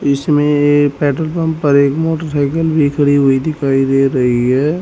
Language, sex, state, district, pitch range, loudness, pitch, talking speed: Hindi, male, Haryana, Rohtak, 140-155 Hz, -13 LUFS, 145 Hz, 150 wpm